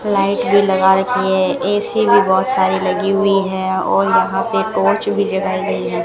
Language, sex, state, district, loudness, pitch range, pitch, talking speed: Hindi, female, Rajasthan, Bikaner, -15 LUFS, 190-200 Hz, 195 Hz, 200 wpm